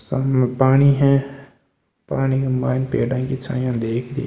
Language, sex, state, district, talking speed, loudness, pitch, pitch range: Hindi, male, Rajasthan, Nagaur, 170 wpm, -19 LUFS, 130 Hz, 130-140 Hz